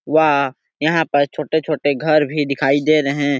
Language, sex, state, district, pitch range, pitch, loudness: Hindi, male, Chhattisgarh, Sarguja, 140-155 Hz, 145 Hz, -17 LUFS